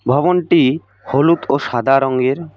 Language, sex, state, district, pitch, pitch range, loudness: Bengali, male, West Bengal, Alipurduar, 140 Hz, 130-165 Hz, -15 LUFS